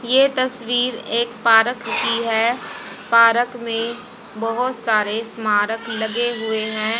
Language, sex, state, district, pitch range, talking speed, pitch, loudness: Hindi, female, Haryana, Jhajjar, 225-240 Hz, 120 wpm, 230 Hz, -19 LUFS